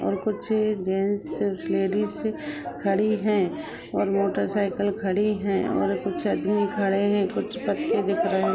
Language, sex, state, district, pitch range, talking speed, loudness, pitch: Hindi, female, Uttar Pradesh, Budaun, 195-210 Hz, 145 wpm, -25 LUFS, 200 Hz